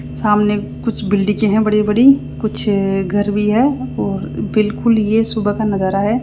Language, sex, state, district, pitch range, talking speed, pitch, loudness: Hindi, female, Rajasthan, Jaipur, 205-220 Hz, 165 wpm, 210 Hz, -16 LUFS